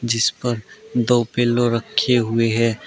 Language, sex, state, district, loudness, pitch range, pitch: Hindi, male, Uttar Pradesh, Shamli, -19 LUFS, 115-120 Hz, 120 Hz